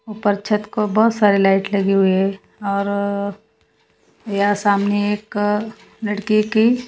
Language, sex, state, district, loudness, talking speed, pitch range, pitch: Hindi, female, Haryana, Charkhi Dadri, -18 LUFS, 130 wpm, 200-215 Hz, 205 Hz